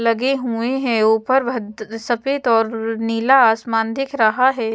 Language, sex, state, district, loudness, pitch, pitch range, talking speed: Hindi, female, Chhattisgarh, Raipur, -18 LUFS, 230 Hz, 225-260 Hz, 140 wpm